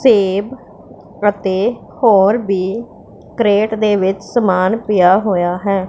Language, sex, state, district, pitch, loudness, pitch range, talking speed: Punjabi, female, Punjab, Pathankot, 200 Hz, -15 LUFS, 190-220 Hz, 110 wpm